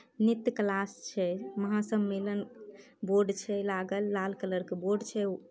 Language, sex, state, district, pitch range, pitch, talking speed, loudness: Maithili, female, Bihar, Samastipur, 195-210 Hz, 200 Hz, 130 wpm, -32 LUFS